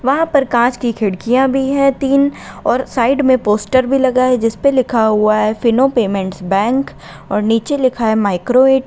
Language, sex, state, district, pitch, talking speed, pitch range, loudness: Hindi, female, Uttar Pradesh, Lalitpur, 250 Hz, 195 wpm, 220-270 Hz, -14 LUFS